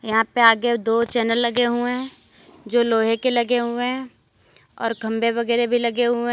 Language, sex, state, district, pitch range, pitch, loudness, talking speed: Hindi, female, Uttar Pradesh, Lalitpur, 230-245 Hz, 235 Hz, -20 LUFS, 200 wpm